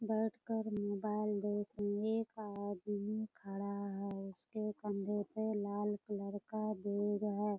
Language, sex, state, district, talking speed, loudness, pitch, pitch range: Hindi, female, Bihar, Purnia, 150 wpm, -40 LUFS, 205 Hz, 205-215 Hz